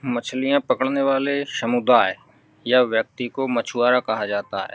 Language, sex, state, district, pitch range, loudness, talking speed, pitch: Hindi, male, Uttarakhand, Uttarkashi, 115-135 Hz, -21 LUFS, 140 wpm, 125 Hz